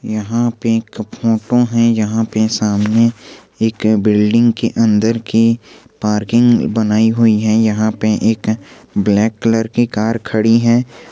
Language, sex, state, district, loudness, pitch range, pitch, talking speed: Hindi, male, Jharkhand, Garhwa, -14 LUFS, 110-115 Hz, 115 Hz, 145 wpm